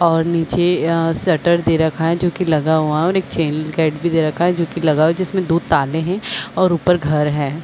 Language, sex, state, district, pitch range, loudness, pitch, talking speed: Hindi, female, Chhattisgarh, Bilaspur, 155-175 Hz, -17 LUFS, 165 Hz, 260 wpm